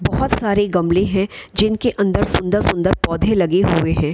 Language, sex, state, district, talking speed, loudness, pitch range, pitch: Hindi, female, Bihar, Kishanganj, 190 wpm, -17 LUFS, 175-205 Hz, 190 Hz